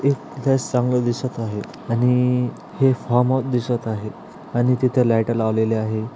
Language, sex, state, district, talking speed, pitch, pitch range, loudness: Marathi, male, Maharashtra, Aurangabad, 145 wpm, 125 Hz, 115-130 Hz, -21 LUFS